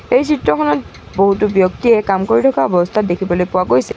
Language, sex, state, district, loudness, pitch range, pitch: Assamese, female, Assam, Sonitpur, -15 LUFS, 175-220 Hz, 190 Hz